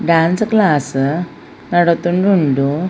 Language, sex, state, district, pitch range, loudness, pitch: Tulu, female, Karnataka, Dakshina Kannada, 145-180 Hz, -15 LUFS, 170 Hz